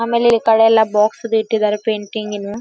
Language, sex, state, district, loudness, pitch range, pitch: Kannada, female, Karnataka, Dharwad, -16 LUFS, 210-225 Hz, 220 Hz